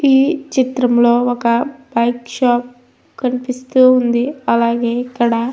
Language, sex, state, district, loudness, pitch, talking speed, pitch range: Telugu, female, Andhra Pradesh, Anantapur, -15 LUFS, 245 Hz, 110 wpm, 240-260 Hz